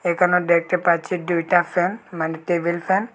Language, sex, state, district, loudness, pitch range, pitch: Bengali, male, Tripura, Unakoti, -20 LUFS, 170-180 Hz, 175 Hz